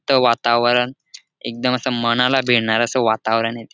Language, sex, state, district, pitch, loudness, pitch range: Marathi, male, Maharashtra, Dhule, 120 Hz, -18 LUFS, 115-125 Hz